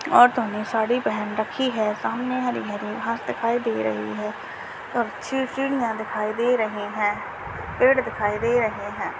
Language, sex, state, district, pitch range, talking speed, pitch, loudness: Hindi, male, Rajasthan, Churu, 210-245 Hz, 170 wpm, 220 Hz, -24 LUFS